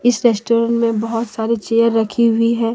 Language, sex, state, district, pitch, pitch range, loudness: Hindi, female, Jharkhand, Deoghar, 230 Hz, 225-235 Hz, -16 LUFS